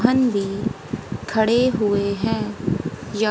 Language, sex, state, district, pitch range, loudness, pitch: Hindi, female, Haryana, Rohtak, 205-230 Hz, -22 LUFS, 220 Hz